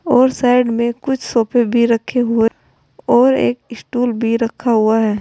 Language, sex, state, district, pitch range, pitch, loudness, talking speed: Hindi, female, Uttar Pradesh, Saharanpur, 230-245 Hz, 235 Hz, -15 LUFS, 170 wpm